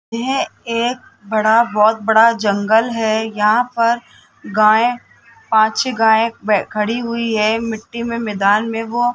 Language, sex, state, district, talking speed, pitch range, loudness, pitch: Hindi, female, Rajasthan, Jaipur, 150 wpm, 215-235 Hz, -16 LUFS, 225 Hz